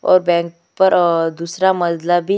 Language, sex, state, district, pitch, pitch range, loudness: Hindi, female, Chhattisgarh, Sukma, 175 Hz, 170-185 Hz, -16 LUFS